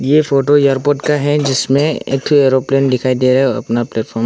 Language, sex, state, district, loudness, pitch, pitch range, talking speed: Hindi, male, Arunachal Pradesh, Longding, -14 LUFS, 135 Hz, 130-145 Hz, 225 wpm